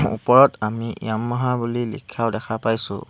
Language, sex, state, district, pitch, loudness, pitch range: Assamese, male, Assam, Hailakandi, 115 Hz, -21 LUFS, 110-120 Hz